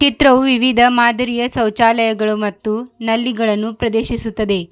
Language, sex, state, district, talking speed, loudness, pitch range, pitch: Kannada, female, Karnataka, Bidar, 90 wpm, -15 LUFS, 220-245 Hz, 230 Hz